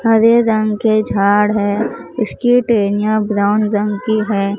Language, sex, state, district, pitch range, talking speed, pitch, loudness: Hindi, male, Maharashtra, Mumbai Suburban, 205-220 Hz, 145 wpm, 215 Hz, -15 LUFS